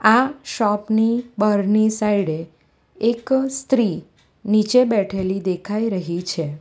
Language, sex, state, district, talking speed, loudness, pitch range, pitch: Gujarati, female, Gujarat, Valsad, 110 wpm, -20 LUFS, 190-230 Hz, 210 Hz